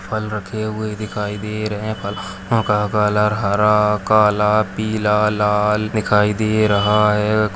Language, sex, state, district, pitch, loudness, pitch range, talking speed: Hindi, male, Chhattisgarh, Jashpur, 105 Hz, -18 LUFS, 105-110 Hz, 150 wpm